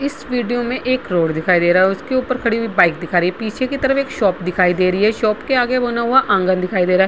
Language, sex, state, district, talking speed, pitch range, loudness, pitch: Hindi, female, Bihar, Vaishali, 305 wpm, 185-255 Hz, -17 LUFS, 215 Hz